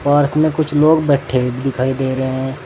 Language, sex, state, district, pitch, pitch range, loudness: Hindi, male, Uttar Pradesh, Saharanpur, 135 Hz, 130-150 Hz, -16 LUFS